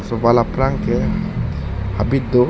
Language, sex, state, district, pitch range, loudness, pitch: Karbi, male, Assam, Karbi Anglong, 100-125 Hz, -19 LUFS, 115 Hz